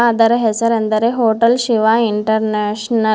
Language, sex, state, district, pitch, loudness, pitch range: Kannada, female, Karnataka, Bidar, 225 Hz, -15 LUFS, 220-230 Hz